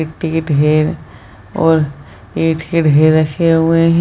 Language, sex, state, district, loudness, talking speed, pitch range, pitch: Hindi, female, Bihar, Jahanabad, -14 LUFS, 180 wpm, 145-165 Hz, 155 Hz